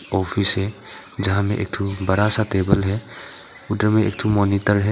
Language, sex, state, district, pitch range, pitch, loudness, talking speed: Hindi, male, Arunachal Pradesh, Papum Pare, 100-105 Hz, 100 Hz, -19 LUFS, 160 wpm